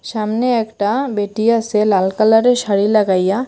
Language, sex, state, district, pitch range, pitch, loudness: Bengali, female, Assam, Hailakandi, 205-230 Hz, 215 Hz, -15 LUFS